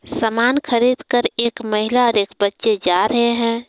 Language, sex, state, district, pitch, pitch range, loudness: Hindi, female, Jharkhand, Palamu, 235 Hz, 220-245 Hz, -17 LUFS